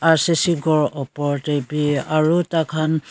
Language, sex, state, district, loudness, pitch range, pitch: Nagamese, female, Nagaland, Kohima, -20 LUFS, 145-165 Hz, 155 Hz